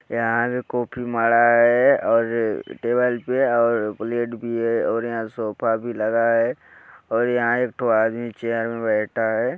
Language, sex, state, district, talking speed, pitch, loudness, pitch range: Hindi, male, Chhattisgarh, Balrampur, 170 wpm, 115 Hz, -21 LUFS, 115-120 Hz